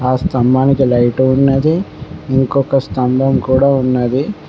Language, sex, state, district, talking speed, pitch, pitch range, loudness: Telugu, male, Telangana, Mahabubabad, 105 wpm, 130 Hz, 130-135 Hz, -13 LUFS